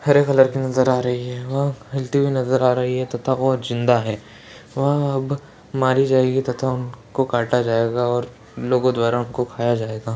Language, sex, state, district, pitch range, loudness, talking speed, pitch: Hindi, male, Uttarakhand, Tehri Garhwal, 120-135 Hz, -20 LUFS, 185 wpm, 130 Hz